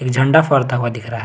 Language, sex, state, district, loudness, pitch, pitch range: Hindi, male, Jharkhand, Garhwa, -15 LUFS, 125 Hz, 120-135 Hz